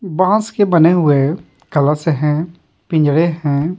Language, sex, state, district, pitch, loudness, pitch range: Hindi, male, Bihar, Patna, 160 Hz, -15 LUFS, 150-175 Hz